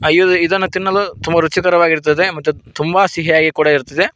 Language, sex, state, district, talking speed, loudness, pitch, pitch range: Kannada, male, Karnataka, Koppal, 145 wpm, -14 LUFS, 170 Hz, 155-185 Hz